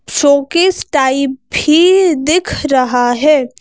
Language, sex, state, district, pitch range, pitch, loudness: Hindi, female, Madhya Pradesh, Bhopal, 265-335 Hz, 290 Hz, -12 LUFS